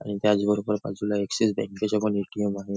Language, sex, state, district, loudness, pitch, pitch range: Marathi, male, Maharashtra, Nagpur, -26 LUFS, 105 Hz, 100-105 Hz